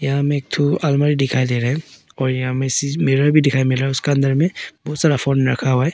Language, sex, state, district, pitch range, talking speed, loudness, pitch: Hindi, male, Arunachal Pradesh, Papum Pare, 130-145 Hz, 265 wpm, -18 LUFS, 140 Hz